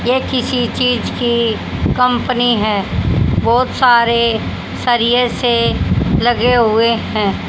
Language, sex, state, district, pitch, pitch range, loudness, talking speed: Hindi, female, Haryana, Charkhi Dadri, 235 Hz, 230-245 Hz, -14 LUFS, 105 wpm